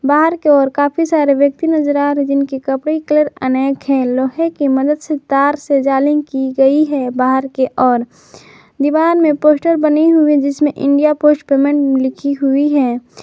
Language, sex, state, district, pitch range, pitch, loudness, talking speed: Hindi, female, Jharkhand, Garhwa, 270-300 Hz, 285 Hz, -14 LUFS, 170 wpm